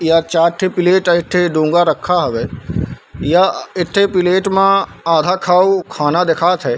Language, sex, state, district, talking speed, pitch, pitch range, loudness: Chhattisgarhi, male, Chhattisgarh, Bilaspur, 160 wpm, 180 Hz, 165-185 Hz, -14 LUFS